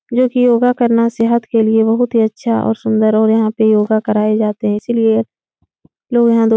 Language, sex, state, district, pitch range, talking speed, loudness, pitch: Hindi, female, Uttar Pradesh, Etah, 220-235 Hz, 220 wpm, -14 LUFS, 225 Hz